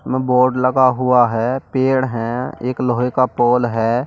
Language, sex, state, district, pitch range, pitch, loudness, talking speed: Hindi, male, Delhi, New Delhi, 120-130 Hz, 125 Hz, -17 LUFS, 175 wpm